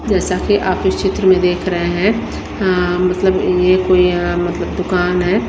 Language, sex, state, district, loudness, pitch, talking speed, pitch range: Hindi, female, Himachal Pradesh, Shimla, -15 LUFS, 180 Hz, 185 wpm, 180-185 Hz